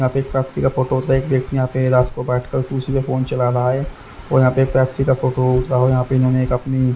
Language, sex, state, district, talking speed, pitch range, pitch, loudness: Hindi, male, Haryana, Rohtak, 320 wpm, 125-130 Hz, 130 Hz, -18 LUFS